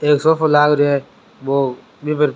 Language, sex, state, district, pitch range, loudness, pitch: Rajasthani, male, Rajasthan, Churu, 140-150 Hz, -16 LUFS, 150 Hz